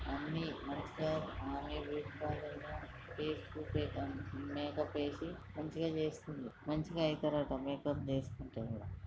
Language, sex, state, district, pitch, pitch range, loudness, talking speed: Telugu, male, Andhra Pradesh, Krishna, 145 Hz, 135-155 Hz, -41 LUFS, 95 wpm